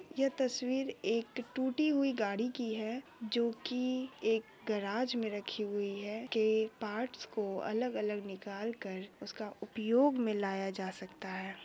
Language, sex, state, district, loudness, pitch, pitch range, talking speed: Hindi, female, Bihar, Sitamarhi, -36 LUFS, 220 Hz, 205-250 Hz, 145 wpm